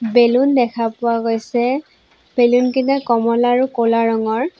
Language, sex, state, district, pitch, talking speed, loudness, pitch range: Assamese, female, Assam, Sonitpur, 240 Hz, 130 wpm, -16 LUFS, 230-250 Hz